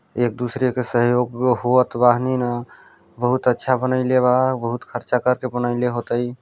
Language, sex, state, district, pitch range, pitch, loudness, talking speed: Hindi, male, Chhattisgarh, Balrampur, 120-125 Hz, 125 Hz, -20 LUFS, 170 wpm